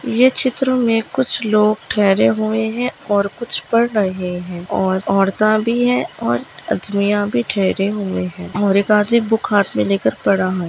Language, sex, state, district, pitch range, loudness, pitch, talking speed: Hindi, female, Maharashtra, Dhule, 185-230 Hz, -17 LUFS, 205 Hz, 185 wpm